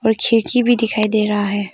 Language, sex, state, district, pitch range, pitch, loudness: Hindi, female, Arunachal Pradesh, Papum Pare, 210-230 Hz, 220 Hz, -16 LUFS